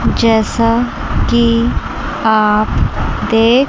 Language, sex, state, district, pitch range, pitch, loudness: Hindi, female, Chandigarh, Chandigarh, 220-235 Hz, 230 Hz, -14 LUFS